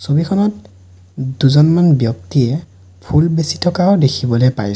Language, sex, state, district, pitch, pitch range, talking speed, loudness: Assamese, male, Assam, Sonitpur, 135 Hz, 105-165 Hz, 100 wpm, -14 LUFS